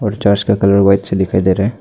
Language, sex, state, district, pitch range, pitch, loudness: Hindi, male, Arunachal Pradesh, Lower Dibang Valley, 95-100 Hz, 100 Hz, -13 LUFS